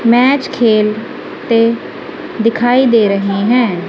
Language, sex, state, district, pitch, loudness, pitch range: Hindi, female, Punjab, Kapurthala, 230 Hz, -12 LUFS, 210-245 Hz